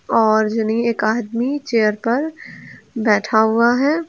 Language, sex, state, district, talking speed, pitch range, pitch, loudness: Hindi, female, Uttar Pradesh, Lucknow, 120 wpm, 220-245 Hz, 230 Hz, -18 LUFS